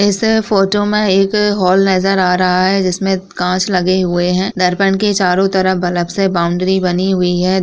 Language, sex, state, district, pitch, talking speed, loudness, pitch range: Hindi, female, Uttar Pradesh, Budaun, 190 Hz, 180 wpm, -14 LUFS, 180-195 Hz